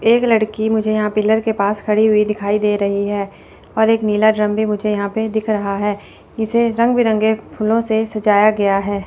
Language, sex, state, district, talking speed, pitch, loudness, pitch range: Hindi, female, Chandigarh, Chandigarh, 210 wpm, 215 Hz, -17 LUFS, 205-220 Hz